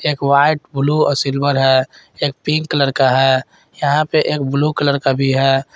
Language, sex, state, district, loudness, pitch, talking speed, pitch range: Hindi, male, Jharkhand, Garhwa, -16 LUFS, 140 Hz, 185 wpm, 135-150 Hz